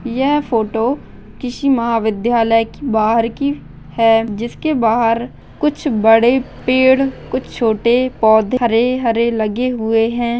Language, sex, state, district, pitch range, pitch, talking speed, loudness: Hindi, female, Maharashtra, Solapur, 225-255 Hz, 235 Hz, 120 wpm, -15 LUFS